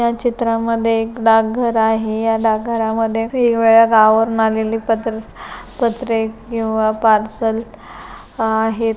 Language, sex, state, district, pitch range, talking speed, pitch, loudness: Marathi, female, Maharashtra, Pune, 220-230 Hz, 100 wpm, 225 Hz, -16 LUFS